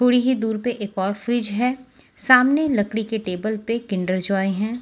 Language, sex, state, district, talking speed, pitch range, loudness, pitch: Hindi, female, Chhattisgarh, Raipur, 200 wpm, 200-245 Hz, -21 LUFS, 220 Hz